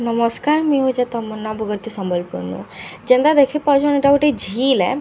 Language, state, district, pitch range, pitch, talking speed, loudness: Sambalpuri, Odisha, Sambalpur, 210-280 Hz, 245 Hz, 180 wpm, -17 LUFS